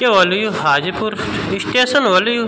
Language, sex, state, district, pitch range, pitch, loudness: Garhwali, male, Uttarakhand, Tehri Garhwal, 185-240 Hz, 215 Hz, -15 LUFS